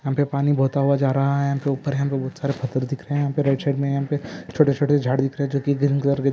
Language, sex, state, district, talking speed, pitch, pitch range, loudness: Hindi, male, Andhra Pradesh, Visakhapatnam, 235 wpm, 140 Hz, 135-140 Hz, -22 LUFS